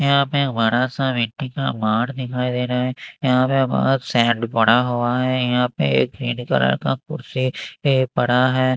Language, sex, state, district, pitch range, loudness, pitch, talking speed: Hindi, male, Maharashtra, Mumbai Suburban, 120-130 Hz, -20 LUFS, 125 Hz, 190 wpm